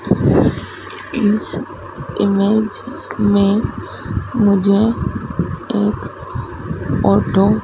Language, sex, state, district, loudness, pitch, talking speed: Hindi, female, Madhya Pradesh, Dhar, -17 LUFS, 200 Hz, 55 wpm